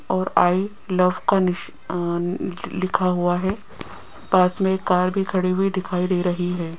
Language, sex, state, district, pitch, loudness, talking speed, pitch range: Hindi, female, Rajasthan, Jaipur, 185 Hz, -22 LUFS, 170 wpm, 180-190 Hz